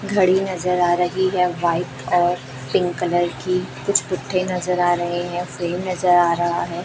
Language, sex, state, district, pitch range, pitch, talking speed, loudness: Hindi, female, Chhattisgarh, Raipur, 175-185 Hz, 175 Hz, 185 wpm, -20 LUFS